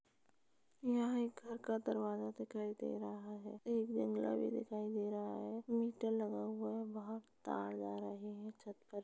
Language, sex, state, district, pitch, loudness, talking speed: Hindi, female, Uttar Pradesh, Etah, 210 Hz, -42 LUFS, 180 wpm